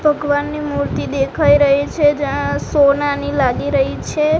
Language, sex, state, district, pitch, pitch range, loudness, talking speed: Gujarati, female, Gujarat, Gandhinagar, 290 Hz, 280-295 Hz, -16 LUFS, 135 wpm